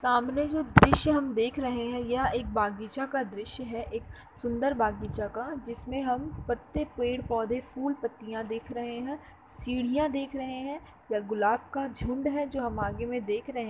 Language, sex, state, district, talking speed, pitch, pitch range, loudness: Hindi, female, Uttar Pradesh, Jalaun, 190 wpm, 245 Hz, 230-270 Hz, -30 LUFS